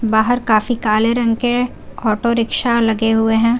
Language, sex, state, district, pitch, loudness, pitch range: Hindi, female, Jharkhand, Garhwa, 230 Hz, -16 LUFS, 220-240 Hz